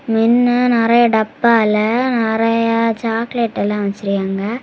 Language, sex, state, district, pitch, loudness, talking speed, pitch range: Tamil, female, Tamil Nadu, Kanyakumari, 230 Hz, -15 LUFS, 90 wpm, 215-235 Hz